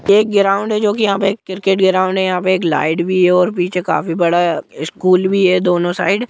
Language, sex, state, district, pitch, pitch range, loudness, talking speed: Hindi, female, Jharkhand, Jamtara, 185 Hz, 180-195 Hz, -15 LUFS, 230 wpm